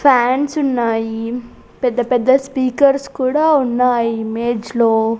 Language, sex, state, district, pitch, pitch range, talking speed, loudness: Telugu, female, Andhra Pradesh, Sri Satya Sai, 250 Hz, 230-270 Hz, 105 wpm, -16 LUFS